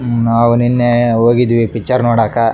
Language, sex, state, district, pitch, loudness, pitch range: Kannada, male, Karnataka, Raichur, 120 Hz, -12 LUFS, 115-120 Hz